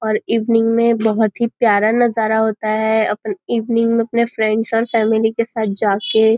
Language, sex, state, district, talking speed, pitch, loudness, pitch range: Hindi, female, Maharashtra, Nagpur, 190 wpm, 220 Hz, -16 LUFS, 220-230 Hz